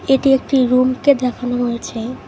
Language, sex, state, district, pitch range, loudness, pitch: Bengali, female, West Bengal, Cooch Behar, 245-270 Hz, -16 LUFS, 255 Hz